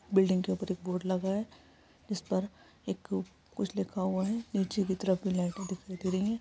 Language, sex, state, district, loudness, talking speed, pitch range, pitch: Hindi, female, West Bengal, Purulia, -33 LUFS, 205 wpm, 180-195 Hz, 190 Hz